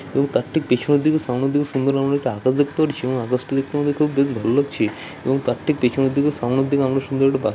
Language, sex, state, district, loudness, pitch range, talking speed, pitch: Bengali, male, West Bengal, Dakshin Dinajpur, -20 LUFS, 130-145 Hz, 260 wpm, 135 Hz